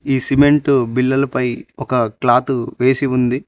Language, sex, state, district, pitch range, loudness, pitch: Telugu, male, Telangana, Mahabubabad, 125-135 Hz, -16 LUFS, 130 Hz